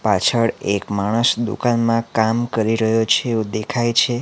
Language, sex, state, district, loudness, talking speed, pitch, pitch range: Gujarati, male, Gujarat, Valsad, -18 LUFS, 155 wpm, 115 Hz, 110-120 Hz